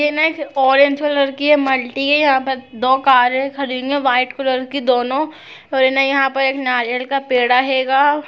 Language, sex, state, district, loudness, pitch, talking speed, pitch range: Hindi, female, Chhattisgarh, Sarguja, -16 LUFS, 270 Hz, 205 wpm, 260-280 Hz